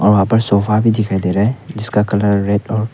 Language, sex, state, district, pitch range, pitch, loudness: Hindi, male, Arunachal Pradesh, Papum Pare, 100-110 Hz, 105 Hz, -15 LUFS